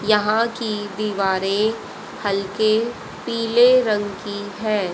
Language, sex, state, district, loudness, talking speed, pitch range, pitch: Hindi, female, Haryana, Jhajjar, -20 LUFS, 95 wpm, 205-225 Hz, 210 Hz